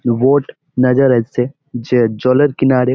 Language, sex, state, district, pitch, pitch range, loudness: Bengali, male, West Bengal, Malda, 125 Hz, 120-135 Hz, -14 LUFS